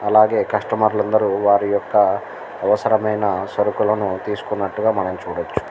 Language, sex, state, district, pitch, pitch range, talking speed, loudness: Telugu, male, Andhra Pradesh, Guntur, 105 Hz, 100-110 Hz, 115 wpm, -19 LUFS